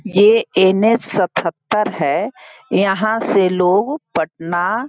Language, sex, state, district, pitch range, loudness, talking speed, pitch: Hindi, female, Bihar, Sitamarhi, 180-220 Hz, -16 LUFS, 110 wpm, 195 Hz